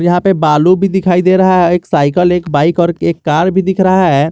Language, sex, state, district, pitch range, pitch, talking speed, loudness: Hindi, male, Jharkhand, Garhwa, 165-185 Hz, 175 Hz, 265 wpm, -11 LUFS